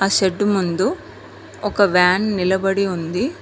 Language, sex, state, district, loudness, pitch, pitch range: Telugu, female, Telangana, Mahabubabad, -18 LUFS, 190 Hz, 185-200 Hz